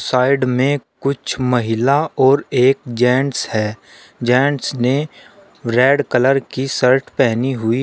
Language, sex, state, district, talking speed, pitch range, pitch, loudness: Hindi, male, Uttar Pradesh, Shamli, 130 wpm, 125-140 Hz, 130 Hz, -16 LUFS